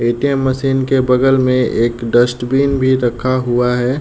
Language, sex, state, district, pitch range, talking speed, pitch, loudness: Hindi, male, Uttar Pradesh, Deoria, 120-135 Hz, 165 wpm, 130 Hz, -14 LUFS